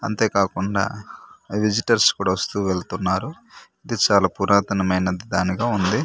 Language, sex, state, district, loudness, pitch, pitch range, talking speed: Telugu, male, Andhra Pradesh, Manyam, -21 LUFS, 100 Hz, 95-115 Hz, 110 wpm